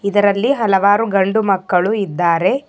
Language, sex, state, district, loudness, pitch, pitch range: Kannada, female, Karnataka, Bidar, -15 LUFS, 200 Hz, 190-215 Hz